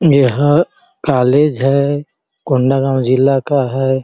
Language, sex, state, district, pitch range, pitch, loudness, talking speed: Hindi, male, Chhattisgarh, Bastar, 130-145 Hz, 135 Hz, -14 LUFS, 120 wpm